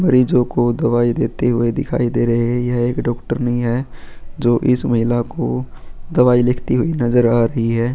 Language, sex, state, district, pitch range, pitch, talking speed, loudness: Hindi, male, Goa, North and South Goa, 120-125 Hz, 120 Hz, 190 wpm, -17 LUFS